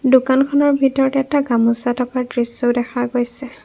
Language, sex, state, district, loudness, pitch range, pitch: Assamese, female, Assam, Kamrup Metropolitan, -17 LUFS, 245-270 Hz, 255 Hz